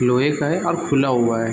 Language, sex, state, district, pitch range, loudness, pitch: Hindi, male, Chhattisgarh, Raigarh, 125-150 Hz, -19 LUFS, 135 Hz